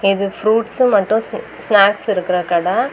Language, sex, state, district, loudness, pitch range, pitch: Tamil, female, Tamil Nadu, Kanyakumari, -15 LUFS, 195-225 Hz, 205 Hz